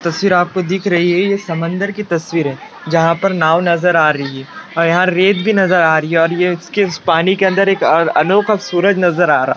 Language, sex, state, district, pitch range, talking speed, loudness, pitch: Hindi, male, Maharashtra, Washim, 165-195 Hz, 240 wpm, -14 LUFS, 175 Hz